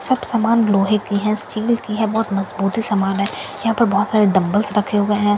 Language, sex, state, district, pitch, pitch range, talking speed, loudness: Hindi, female, Bihar, Katihar, 210 Hz, 200-225 Hz, 225 wpm, -18 LUFS